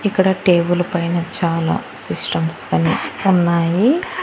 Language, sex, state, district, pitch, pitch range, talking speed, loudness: Telugu, female, Andhra Pradesh, Annamaya, 175 Hz, 170-190 Hz, 100 wpm, -18 LUFS